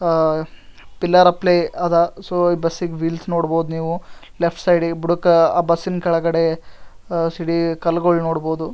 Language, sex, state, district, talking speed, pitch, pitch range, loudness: Kannada, male, Karnataka, Gulbarga, 115 wpm, 170 Hz, 165-175 Hz, -18 LUFS